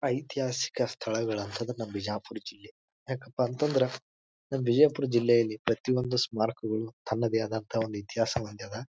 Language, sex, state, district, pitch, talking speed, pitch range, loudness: Kannada, male, Karnataka, Bijapur, 115 Hz, 135 wpm, 110-125 Hz, -30 LUFS